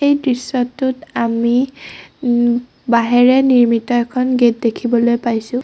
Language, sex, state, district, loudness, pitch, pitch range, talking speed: Assamese, female, Assam, Sonitpur, -15 LUFS, 245 Hz, 235-255 Hz, 95 wpm